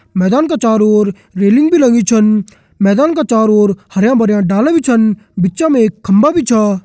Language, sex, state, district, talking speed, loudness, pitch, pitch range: Kumaoni, male, Uttarakhand, Tehri Garhwal, 200 wpm, -11 LUFS, 215 Hz, 200-250 Hz